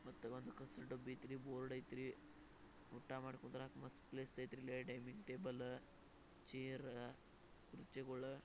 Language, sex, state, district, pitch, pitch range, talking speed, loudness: Kannada, male, Karnataka, Belgaum, 130 Hz, 125-130 Hz, 120 wpm, -53 LUFS